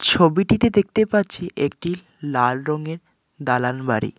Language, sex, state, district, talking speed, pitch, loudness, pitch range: Bengali, male, West Bengal, Alipurduar, 115 wpm, 160 Hz, -21 LUFS, 130-190 Hz